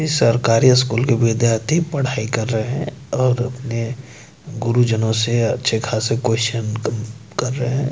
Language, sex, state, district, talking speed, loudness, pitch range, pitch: Hindi, male, Madhya Pradesh, Bhopal, 145 wpm, -19 LUFS, 115-130 Hz, 120 Hz